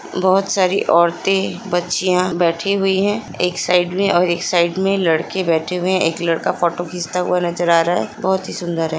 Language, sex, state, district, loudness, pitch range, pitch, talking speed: Hindi, female, Chhattisgarh, Sukma, -17 LUFS, 170-190 Hz, 180 Hz, 205 wpm